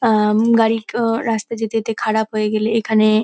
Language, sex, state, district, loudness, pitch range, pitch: Bengali, female, West Bengal, North 24 Parganas, -18 LUFS, 215-225 Hz, 225 Hz